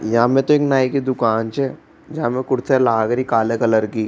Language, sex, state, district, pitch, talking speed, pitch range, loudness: Rajasthani, male, Rajasthan, Churu, 125 Hz, 205 wpm, 115-135 Hz, -18 LUFS